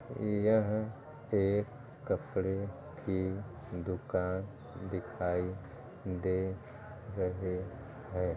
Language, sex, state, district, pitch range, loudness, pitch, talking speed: Hindi, male, Bihar, Gaya, 95-115 Hz, -35 LUFS, 100 Hz, 65 wpm